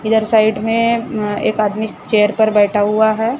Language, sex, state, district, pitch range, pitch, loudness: Hindi, male, Maharashtra, Gondia, 210-225 Hz, 220 Hz, -15 LUFS